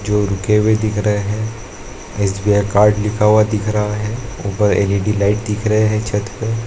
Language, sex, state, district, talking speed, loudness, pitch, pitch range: Hindi, male, Bihar, Purnia, 190 wpm, -16 LUFS, 105 Hz, 105-110 Hz